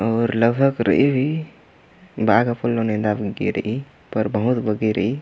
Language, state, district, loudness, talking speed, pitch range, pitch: Kurukh, Chhattisgarh, Jashpur, -20 LUFS, 140 wpm, 110-135 Hz, 115 Hz